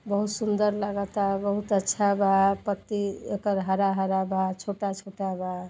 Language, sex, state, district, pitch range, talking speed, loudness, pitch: Bhojpuri, female, Uttar Pradesh, Gorakhpur, 190-205 Hz, 145 wpm, -27 LUFS, 200 Hz